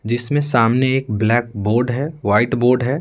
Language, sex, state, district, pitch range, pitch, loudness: Hindi, male, Bihar, Patna, 115-130 Hz, 120 Hz, -17 LUFS